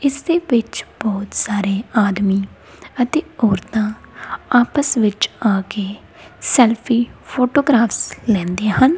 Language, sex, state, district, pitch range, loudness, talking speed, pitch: Punjabi, female, Punjab, Kapurthala, 205-255 Hz, -18 LUFS, 100 wpm, 225 Hz